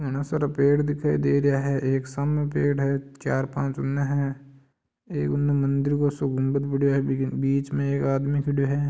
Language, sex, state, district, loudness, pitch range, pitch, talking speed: Marwari, male, Rajasthan, Nagaur, -24 LUFS, 135-140 Hz, 140 Hz, 195 wpm